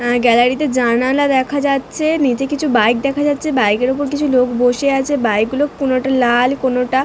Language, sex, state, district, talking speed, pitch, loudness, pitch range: Bengali, female, West Bengal, Dakshin Dinajpur, 195 wpm, 265 Hz, -15 LUFS, 245-280 Hz